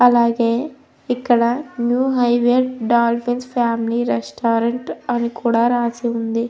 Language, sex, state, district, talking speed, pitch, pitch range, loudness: Telugu, female, Andhra Pradesh, Anantapur, 110 wpm, 240 Hz, 235-245 Hz, -18 LUFS